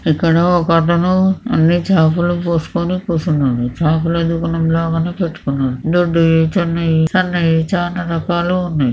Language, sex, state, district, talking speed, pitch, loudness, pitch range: Telugu, male, Andhra Pradesh, Krishna, 115 wpm, 170 Hz, -15 LUFS, 160-175 Hz